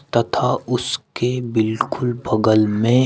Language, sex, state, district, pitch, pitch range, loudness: Hindi, male, Uttar Pradesh, Shamli, 120 Hz, 110-125 Hz, -19 LUFS